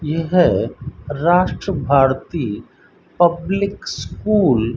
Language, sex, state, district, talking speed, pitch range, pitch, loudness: Hindi, male, Rajasthan, Bikaner, 75 wpm, 140-185 Hz, 170 Hz, -18 LUFS